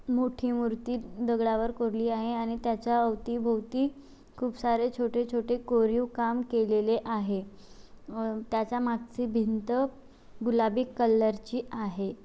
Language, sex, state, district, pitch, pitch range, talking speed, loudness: Marathi, female, Maharashtra, Chandrapur, 235 Hz, 225-245 Hz, 120 wpm, -29 LUFS